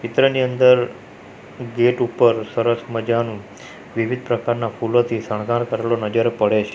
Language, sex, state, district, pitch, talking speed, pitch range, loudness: Gujarati, male, Gujarat, Valsad, 115 Hz, 135 wpm, 115-120 Hz, -19 LUFS